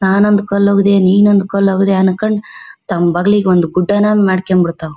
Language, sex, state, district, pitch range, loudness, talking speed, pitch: Kannada, female, Karnataka, Bellary, 185-205 Hz, -12 LUFS, 135 wpm, 195 Hz